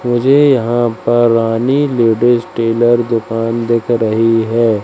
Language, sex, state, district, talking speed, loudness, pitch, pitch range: Hindi, male, Madhya Pradesh, Katni, 125 wpm, -13 LUFS, 115 Hz, 115-120 Hz